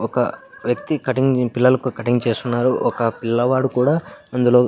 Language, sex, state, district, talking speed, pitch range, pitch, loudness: Telugu, male, Andhra Pradesh, Anantapur, 140 wpm, 120-130 Hz, 125 Hz, -19 LUFS